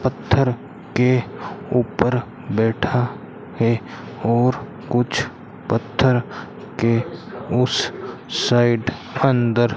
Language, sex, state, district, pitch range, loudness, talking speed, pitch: Hindi, male, Rajasthan, Bikaner, 115-125 Hz, -20 LUFS, 80 wpm, 120 Hz